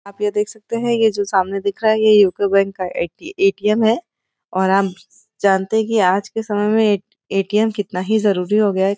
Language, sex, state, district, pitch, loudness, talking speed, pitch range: Hindi, female, Uttar Pradesh, Varanasi, 205 Hz, -18 LUFS, 235 wpm, 195-220 Hz